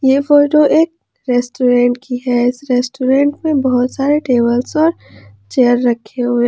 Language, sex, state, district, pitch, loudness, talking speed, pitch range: Hindi, male, Jharkhand, Ranchi, 250 Hz, -14 LUFS, 150 wpm, 245-285 Hz